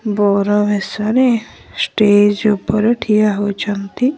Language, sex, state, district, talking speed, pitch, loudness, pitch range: Odia, male, Odisha, Nuapada, 85 wpm, 210 Hz, -15 LUFS, 205-220 Hz